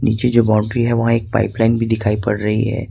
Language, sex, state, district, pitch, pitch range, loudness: Hindi, male, Jharkhand, Ranchi, 115 Hz, 105-115 Hz, -17 LUFS